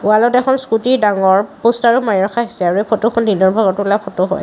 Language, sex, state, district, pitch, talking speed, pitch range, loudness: Assamese, female, Assam, Sonitpur, 215 Hz, 215 wpm, 195-235 Hz, -14 LUFS